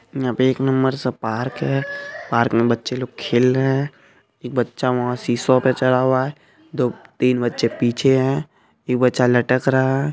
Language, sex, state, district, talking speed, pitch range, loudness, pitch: Hindi, male, Bihar, Araria, 185 wpm, 125-135 Hz, -19 LUFS, 130 Hz